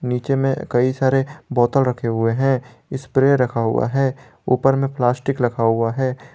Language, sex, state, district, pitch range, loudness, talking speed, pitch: Hindi, male, Jharkhand, Garhwa, 120-135 Hz, -19 LUFS, 170 wpm, 130 Hz